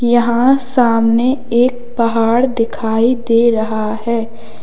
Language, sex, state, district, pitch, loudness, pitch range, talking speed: Hindi, male, Uttar Pradesh, Lalitpur, 235 Hz, -14 LUFS, 230-245 Hz, 105 wpm